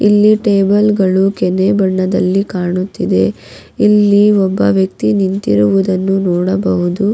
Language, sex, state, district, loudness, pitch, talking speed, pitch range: Kannada, female, Karnataka, Raichur, -13 LUFS, 190 Hz, 90 wpm, 125-200 Hz